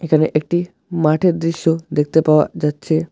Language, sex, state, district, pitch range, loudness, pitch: Bengali, male, West Bengal, Alipurduar, 155-165 Hz, -17 LUFS, 160 Hz